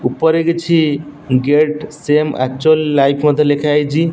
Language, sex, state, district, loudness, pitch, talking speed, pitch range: Odia, male, Odisha, Nuapada, -14 LUFS, 150 Hz, 130 wpm, 145-155 Hz